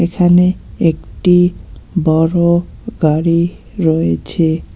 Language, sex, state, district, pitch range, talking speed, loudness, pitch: Bengali, male, West Bengal, Alipurduar, 160-175 Hz, 65 wpm, -14 LUFS, 170 Hz